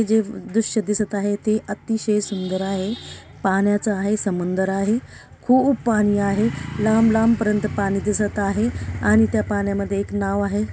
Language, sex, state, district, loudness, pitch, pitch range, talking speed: Marathi, female, Maharashtra, Dhule, -21 LUFS, 205 Hz, 195-215 Hz, 150 wpm